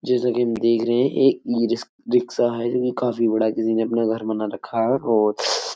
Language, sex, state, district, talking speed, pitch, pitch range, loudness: Hindi, male, Uttar Pradesh, Etah, 240 wpm, 115 Hz, 110-120 Hz, -21 LUFS